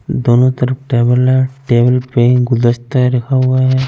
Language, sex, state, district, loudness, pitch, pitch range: Hindi, male, Punjab, Fazilka, -13 LUFS, 125 Hz, 120-130 Hz